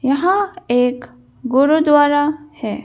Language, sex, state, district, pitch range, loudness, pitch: Hindi, female, Madhya Pradesh, Bhopal, 250-305 Hz, -16 LUFS, 290 Hz